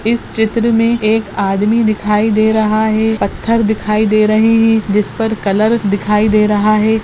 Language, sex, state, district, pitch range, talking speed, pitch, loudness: Hindi, female, Maharashtra, Sindhudurg, 210-225 Hz, 180 wpm, 215 Hz, -13 LUFS